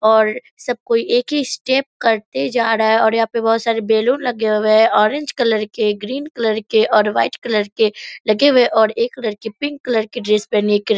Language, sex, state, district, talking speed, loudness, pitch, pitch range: Hindi, female, Bihar, Purnia, 225 wpm, -17 LUFS, 225 Hz, 215-245 Hz